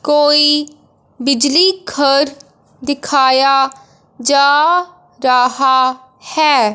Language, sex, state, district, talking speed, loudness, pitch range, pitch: Hindi, female, Punjab, Fazilka, 60 wpm, -13 LUFS, 260-295 Hz, 280 Hz